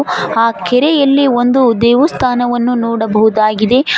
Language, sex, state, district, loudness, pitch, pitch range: Kannada, female, Karnataka, Koppal, -12 LUFS, 245 Hz, 230-260 Hz